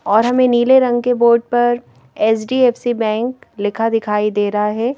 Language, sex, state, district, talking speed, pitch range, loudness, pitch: Hindi, female, Madhya Pradesh, Bhopal, 170 wpm, 215-245 Hz, -16 LUFS, 235 Hz